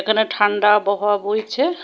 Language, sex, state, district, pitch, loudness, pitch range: Bengali, female, Tripura, West Tripura, 210 Hz, -18 LUFS, 205-220 Hz